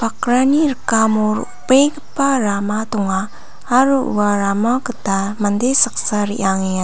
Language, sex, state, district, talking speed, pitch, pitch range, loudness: Garo, female, Meghalaya, North Garo Hills, 105 wpm, 220 Hz, 205-255 Hz, -16 LUFS